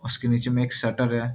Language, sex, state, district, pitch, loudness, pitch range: Hindi, male, Bihar, Muzaffarpur, 120 Hz, -24 LUFS, 120-125 Hz